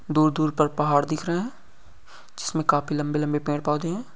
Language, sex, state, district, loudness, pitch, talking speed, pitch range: Hindi, male, Uttar Pradesh, Deoria, -24 LUFS, 150 Hz, 160 wpm, 150-160 Hz